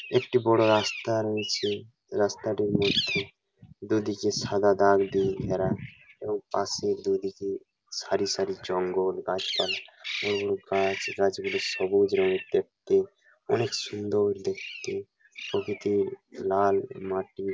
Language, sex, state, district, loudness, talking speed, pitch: Bengali, male, West Bengal, Paschim Medinipur, -27 LUFS, 105 wpm, 115 Hz